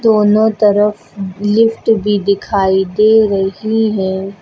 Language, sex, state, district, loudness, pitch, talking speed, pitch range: Hindi, female, Uttar Pradesh, Lucknow, -13 LUFS, 210 Hz, 110 wpm, 195-220 Hz